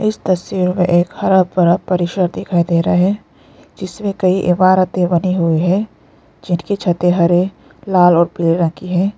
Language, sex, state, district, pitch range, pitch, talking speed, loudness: Hindi, female, Arunachal Pradesh, Lower Dibang Valley, 175-190 Hz, 180 Hz, 170 wpm, -15 LUFS